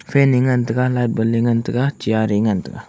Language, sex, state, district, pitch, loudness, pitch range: Wancho, male, Arunachal Pradesh, Longding, 120 Hz, -18 LUFS, 110-125 Hz